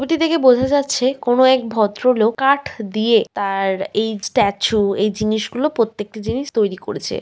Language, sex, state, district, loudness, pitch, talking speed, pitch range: Bengali, female, West Bengal, Malda, -18 LUFS, 225 Hz, 160 wpm, 210-265 Hz